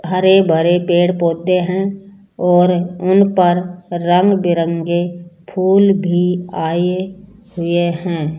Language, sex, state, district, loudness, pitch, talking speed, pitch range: Hindi, female, Rajasthan, Jaipur, -15 LUFS, 180 Hz, 100 wpm, 175-190 Hz